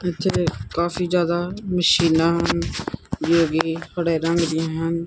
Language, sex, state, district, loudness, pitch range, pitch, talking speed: Punjabi, male, Punjab, Kapurthala, -21 LUFS, 165-175 Hz, 170 Hz, 120 wpm